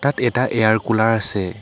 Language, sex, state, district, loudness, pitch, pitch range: Assamese, male, Assam, Hailakandi, -18 LUFS, 115 Hz, 110-120 Hz